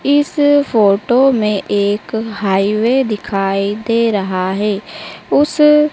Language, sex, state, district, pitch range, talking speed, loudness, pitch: Hindi, female, Madhya Pradesh, Dhar, 200-270 Hz, 100 wpm, -14 LUFS, 215 Hz